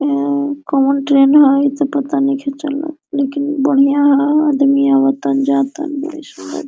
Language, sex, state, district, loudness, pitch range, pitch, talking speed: Hindi, female, Jharkhand, Sahebganj, -14 LUFS, 275-290 Hz, 285 Hz, 125 wpm